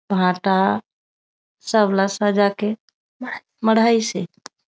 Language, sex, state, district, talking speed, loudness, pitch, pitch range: Chhattisgarhi, female, Chhattisgarh, Raigarh, 90 wpm, -19 LUFS, 205 Hz, 195-220 Hz